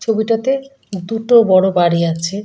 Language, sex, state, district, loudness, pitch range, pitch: Bengali, female, West Bengal, Malda, -15 LUFS, 185-230 Hz, 210 Hz